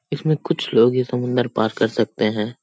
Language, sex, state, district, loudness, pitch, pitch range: Hindi, male, Bihar, Jamui, -20 LUFS, 120 Hz, 110-130 Hz